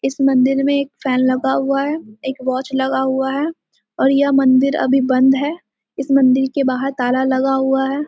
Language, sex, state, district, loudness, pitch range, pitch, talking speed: Hindi, female, Bihar, Jamui, -17 LUFS, 260-275 Hz, 270 Hz, 200 wpm